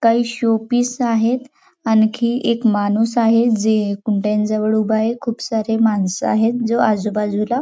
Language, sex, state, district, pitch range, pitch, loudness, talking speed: Marathi, female, Maharashtra, Nagpur, 215-235 Hz, 225 Hz, -17 LUFS, 150 wpm